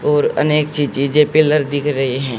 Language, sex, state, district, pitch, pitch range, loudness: Hindi, male, Haryana, Jhajjar, 145 Hz, 140-150 Hz, -15 LUFS